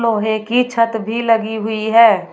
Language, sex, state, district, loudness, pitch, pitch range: Hindi, female, Uttar Pradesh, Shamli, -15 LUFS, 225 Hz, 220-230 Hz